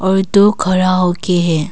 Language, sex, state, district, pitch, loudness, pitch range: Hindi, female, Arunachal Pradesh, Longding, 185 Hz, -13 LUFS, 180-190 Hz